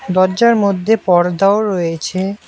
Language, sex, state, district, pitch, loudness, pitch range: Bengali, male, West Bengal, Alipurduar, 195 Hz, -14 LUFS, 185-210 Hz